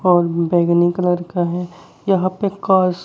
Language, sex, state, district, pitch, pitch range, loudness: Hindi, male, Bihar, Kaimur, 180 Hz, 175-185 Hz, -18 LUFS